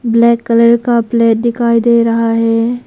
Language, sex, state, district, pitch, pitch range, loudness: Hindi, female, Arunachal Pradesh, Papum Pare, 235 Hz, 230-235 Hz, -11 LUFS